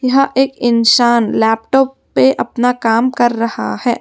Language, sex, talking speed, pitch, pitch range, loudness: Hindi, female, 150 wpm, 240 Hz, 225-260 Hz, -13 LUFS